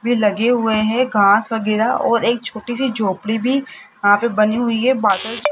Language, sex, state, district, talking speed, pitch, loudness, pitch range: Hindi, female, Rajasthan, Jaipur, 195 wpm, 225 Hz, -17 LUFS, 215-240 Hz